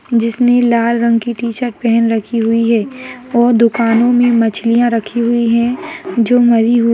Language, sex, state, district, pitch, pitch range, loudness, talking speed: Hindi, female, Maharashtra, Solapur, 235 Hz, 230-240 Hz, -13 LUFS, 165 wpm